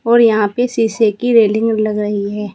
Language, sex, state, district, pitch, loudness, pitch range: Hindi, female, Uttar Pradesh, Saharanpur, 220 Hz, -14 LUFS, 210-230 Hz